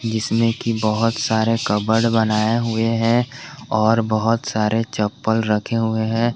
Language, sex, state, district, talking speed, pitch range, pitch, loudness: Hindi, male, Jharkhand, Garhwa, 140 wpm, 110-115 Hz, 115 Hz, -19 LUFS